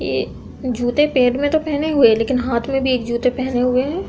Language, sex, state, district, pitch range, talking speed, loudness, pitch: Hindi, female, Uttar Pradesh, Deoria, 245-285 Hz, 250 wpm, -18 LUFS, 255 Hz